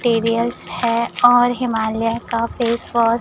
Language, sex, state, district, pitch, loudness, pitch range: Hindi, male, Chhattisgarh, Raipur, 235 Hz, -18 LUFS, 230-240 Hz